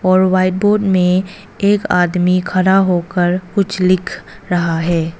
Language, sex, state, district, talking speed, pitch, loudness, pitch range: Hindi, female, Arunachal Pradesh, Papum Pare, 140 wpm, 185 Hz, -15 LUFS, 180-195 Hz